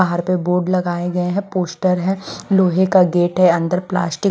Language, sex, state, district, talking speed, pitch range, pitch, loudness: Hindi, female, Bihar, West Champaran, 210 wpm, 175-185 Hz, 180 Hz, -17 LUFS